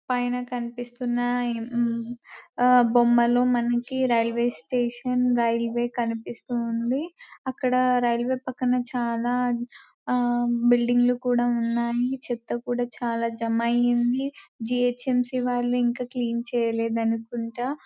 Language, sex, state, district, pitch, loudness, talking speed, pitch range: Telugu, female, Telangana, Nalgonda, 240 Hz, -25 LUFS, 100 wpm, 235-250 Hz